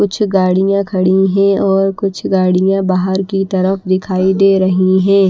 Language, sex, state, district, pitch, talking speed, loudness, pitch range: Hindi, female, Himachal Pradesh, Shimla, 190 Hz, 160 wpm, -13 LUFS, 185-195 Hz